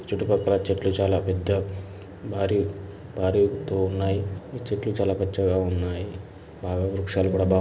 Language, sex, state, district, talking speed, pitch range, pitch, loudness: Telugu, male, Andhra Pradesh, Guntur, 125 wpm, 95-100 Hz, 95 Hz, -25 LUFS